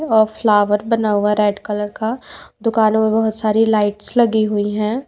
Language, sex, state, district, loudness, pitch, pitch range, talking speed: Hindi, female, Bihar, Patna, -17 LUFS, 215 Hz, 210-220 Hz, 190 wpm